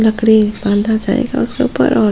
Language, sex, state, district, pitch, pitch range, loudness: Hindi, female, Goa, North and South Goa, 220 Hz, 210-245 Hz, -14 LUFS